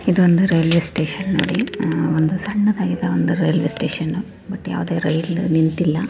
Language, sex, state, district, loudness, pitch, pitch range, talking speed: Kannada, female, Karnataka, Raichur, -19 LUFS, 170 Hz, 160-190 Hz, 155 wpm